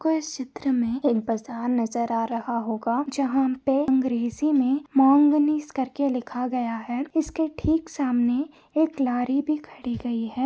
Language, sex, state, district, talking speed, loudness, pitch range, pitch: Hindi, female, Bihar, Saran, 160 wpm, -24 LUFS, 240-290 Hz, 265 Hz